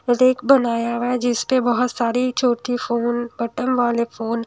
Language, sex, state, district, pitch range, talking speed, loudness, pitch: Hindi, female, Himachal Pradesh, Shimla, 235-250 Hz, 175 wpm, -20 LUFS, 245 Hz